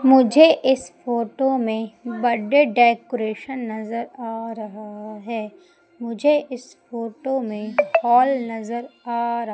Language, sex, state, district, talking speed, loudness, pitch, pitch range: Hindi, female, Madhya Pradesh, Umaria, 115 wpm, -21 LUFS, 235 Hz, 225-265 Hz